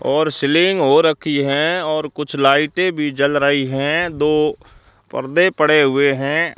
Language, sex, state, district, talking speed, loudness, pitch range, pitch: Hindi, male, Rajasthan, Bikaner, 155 wpm, -16 LUFS, 140-160 Hz, 150 Hz